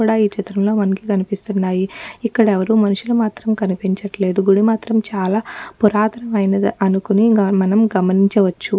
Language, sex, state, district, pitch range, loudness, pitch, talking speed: Telugu, female, Telangana, Nalgonda, 195-220 Hz, -17 LUFS, 205 Hz, 110 wpm